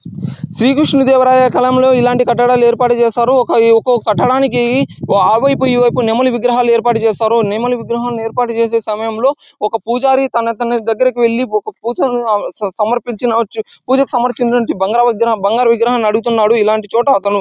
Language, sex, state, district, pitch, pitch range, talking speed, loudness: Telugu, male, Andhra Pradesh, Anantapur, 240 Hz, 225-250 Hz, 150 wpm, -13 LUFS